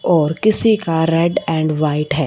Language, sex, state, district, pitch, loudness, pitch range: Hindi, female, Punjab, Fazilka, 165 Hz, -16 LUFS, 155-175 Hz